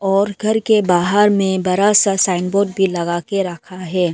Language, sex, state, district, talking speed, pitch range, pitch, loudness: Hindi, female, Arunachal Pradesh, Lower Dibang Valley, 205 wpm, 180-205 Hz, 195 Hz, -16 LUFS